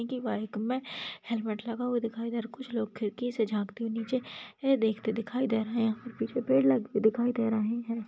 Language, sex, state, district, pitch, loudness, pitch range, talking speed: Hindi, female, West Bengal, Dakshin Dinajpur, 230 Hz, -31 LUFS, 220-240 Hz, 200 wpm